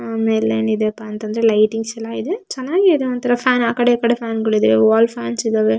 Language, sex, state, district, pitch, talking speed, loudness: Kannada, female, Karnataka, Shimoga, 220 Hz, 165 wpm, -17 LUFS